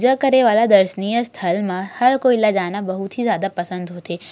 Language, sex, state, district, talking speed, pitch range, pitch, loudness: Hindi, female, Chhattisgarh, Raigarh, 210 wpm, 185-240 Hz, 205 Hz, -18 LUFS